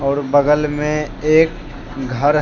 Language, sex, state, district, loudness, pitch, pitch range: Hindi, male, Jharkhand, Deoghar, -16 LUFS, 150 Hz, 140-150 Hz